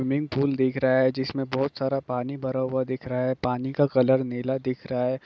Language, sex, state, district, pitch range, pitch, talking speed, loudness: Hindi, male, Bihar, Gopalganj, 130-135 Hz, 130 Hz, 205 wpm, -25 LUFS